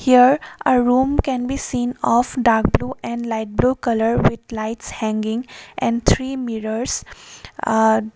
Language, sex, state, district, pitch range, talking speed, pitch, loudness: English, female, Assam, Kamrup Metropolitan, 220-255 Hz, 145 wpm, 235 Hz, -19 LUFS